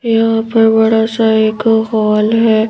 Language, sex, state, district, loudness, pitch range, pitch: Hindi, female, Madhya Pradesh, Bhopal, -12 LUFS, 220-225 Hz, 225 Hz